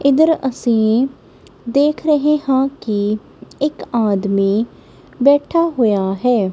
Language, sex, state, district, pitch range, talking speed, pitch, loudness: Punjabi, female, Punjab, Kapurthala, 215-290 Hz, 100 wpm, 250 Hz, -16 LUFS